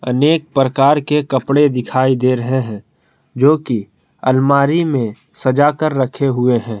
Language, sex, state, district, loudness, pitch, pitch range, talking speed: Hindi, male, Jharkhand, Palamu, -15 LUFS, 130 Hz, 125-145 Hz, 140 wpm